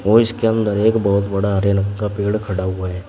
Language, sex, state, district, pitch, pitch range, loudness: Hindi, male, Uttar Pradesh, Shamli, 100 Hz, 100-110 Hz, -18 LUFS